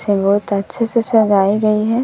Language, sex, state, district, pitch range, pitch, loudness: Hindi, female, Bihar, West Champaran, 200-225 Hz, 215 Hz, -15 LUFS